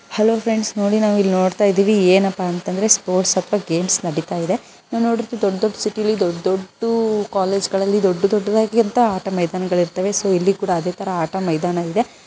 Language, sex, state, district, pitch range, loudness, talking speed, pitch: Kannada, female, Karnataka, Bijapur, 185-215 Hz, -18 LUFS, 130 wpm, 195 Hz